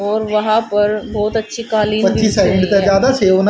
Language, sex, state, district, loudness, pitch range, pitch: Hindi, female, Haryana, Jhajjar, -15 LUFS, 200-220 Hz, 210 Hz